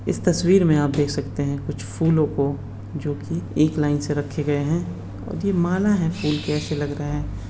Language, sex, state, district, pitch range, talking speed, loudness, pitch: Hindi, male, Uttar Pradesh, Budaun, 140-155 Hz, 215 wpm, -22 LUFS, 145 Hz